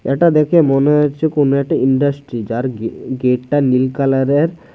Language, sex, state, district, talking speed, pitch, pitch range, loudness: Bengali, male, Tripura, West Tripura, 140 wpm, 140 Hz, 130-150 Hz, -15 LUFS